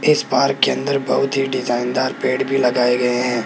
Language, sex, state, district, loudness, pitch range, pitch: Hindi, male, Rajasthan, Jaipur, -18 LUFS, 125-135 Hz, 130 Hz